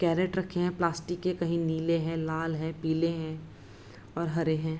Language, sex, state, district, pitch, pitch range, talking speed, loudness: Hindi, female, Bihar, Araria, 165 Hz, 160-170 Hz, 185 wpm, -30 LUFS